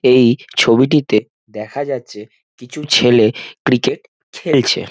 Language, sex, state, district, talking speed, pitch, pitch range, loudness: Bengali, male, West Bengal, Jhargram, 100 wpm, 120 Hz, 110-130 Hz, -14 LUFS